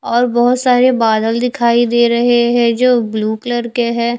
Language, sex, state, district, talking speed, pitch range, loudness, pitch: Hindi, female, Odisha, Khordha, 185 wpm, 235-245 Hz, -13 LUFS, 240 Hz